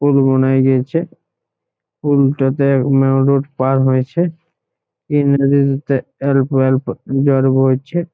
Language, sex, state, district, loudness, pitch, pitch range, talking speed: Bengali, male, West Bengal, Jhargram, -15 LUFS, 135 Hz, 135-140 Hz, 105 wpm